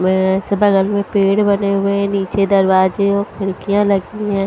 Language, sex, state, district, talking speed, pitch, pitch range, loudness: Hindi, female, Haryana, Charkhi Dadri, 190 wpm, 200 Hz, 195-200 Hz, -15 LUFS